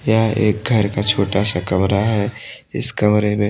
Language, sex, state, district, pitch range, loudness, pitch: Hindi, male, Odisha, Malkangiri, 100-110 Hz, -17 LUFS, 105 Hz